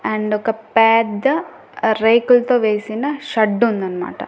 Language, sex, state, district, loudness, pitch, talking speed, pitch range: Telugu, female, Andhra Pradesh, Annamaya, -17 LUFS, 225 Hz, 100 wpm, 215-240 Hz